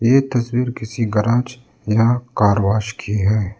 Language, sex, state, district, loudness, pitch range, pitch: Hindi, male, Arunachal Pradesh, Lower Dibang Valley, -18 LUFS, 105-125 Hz, 115 Hz